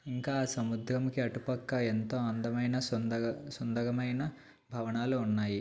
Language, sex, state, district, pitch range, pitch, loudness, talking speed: Telugu, male, Andhra Pradesh, Visakhapatnam, 115-130 Hz, 125 Hz, -34 LUFS, 95 wpm